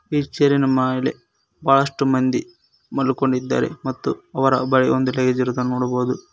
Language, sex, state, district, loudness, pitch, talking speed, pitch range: Kannada, male, Karnataka, Koppal, -20 LUFS, 130 Hz, 135 wpm, 130-135 Hz